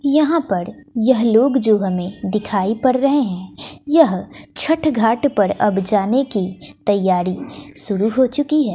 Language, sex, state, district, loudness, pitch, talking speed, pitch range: Hindi, female, Bihar, West Champaran, -17 LUFS, 225 Hz, 150 wpm, 195-275 Hz